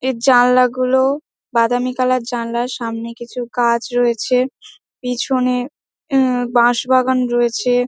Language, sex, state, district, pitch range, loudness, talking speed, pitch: Bengali, female, West Bengal, Dakshin Dinajpur, 240-255 Hz, -17 LUFS, 105 wpm, 250 Hz